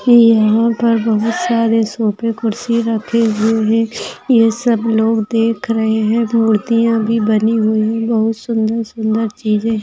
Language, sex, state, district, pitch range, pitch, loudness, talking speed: Hindi, female, Maharashtra, Pune, 220-230 Hz, 225 Hz, -15 LUFS, 150 wpm